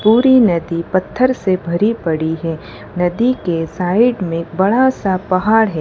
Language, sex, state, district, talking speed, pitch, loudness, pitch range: Hindi, female, Gujarat, Valsad, 155 wpm, 185 Hz, -15 LUFS, 170-225 Hz